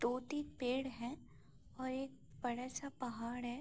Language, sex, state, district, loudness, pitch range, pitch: Hindi, female, Bihar, Saharsa, -43 LUFS, 245-265 Hz, 255 Hz